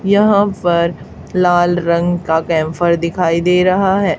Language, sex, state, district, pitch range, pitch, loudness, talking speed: Hindi, female, Haryana, Charkhi Dadri, 170-185 Hz, 175 Hz, -14 LUFS, 145 wpm